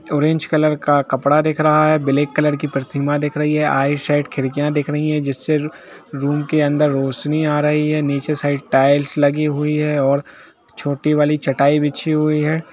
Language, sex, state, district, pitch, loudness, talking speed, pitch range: Hindi, male, Jharkhand, Jamtara, 150 Hz, -17 LUFS, 200 wpm, 140-150 Hz